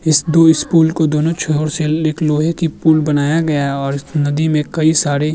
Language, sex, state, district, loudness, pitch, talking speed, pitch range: Hindi, male, Uttar Pradesh, Jyotiba Phule Nagar, -15 LUFS, 155 Hz, 200 wpm, 150-160 Hz